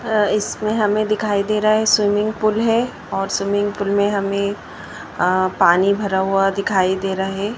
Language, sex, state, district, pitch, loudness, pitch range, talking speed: Hindi, male, Madhya Pradesh, Bhopal, 205 Hz, -18 LUFS, 195-215 Hz, 180 wpm